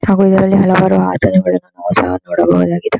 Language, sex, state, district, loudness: Kannada, female, Karnataka, Shimoga, -12 LUFS